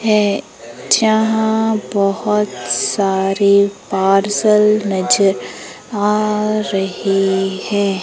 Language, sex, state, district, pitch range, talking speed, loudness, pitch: Hindi, female, Madhya Pradesh, Umaria, 195-215 Hz, 65 wpm, -15 LUFS, 205 Hz